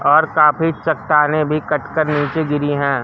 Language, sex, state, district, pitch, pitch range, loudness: Hindi, male, Madhya Pradesh, Katni, 150 Hz, 145-160 Hz, -16 LUFS